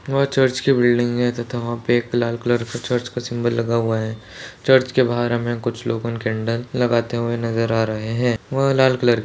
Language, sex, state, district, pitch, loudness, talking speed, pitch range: Hindi, male, Goa, North and South Goa, 120 Hz, -20 LUFS, 215 wpm, 115-125 Hz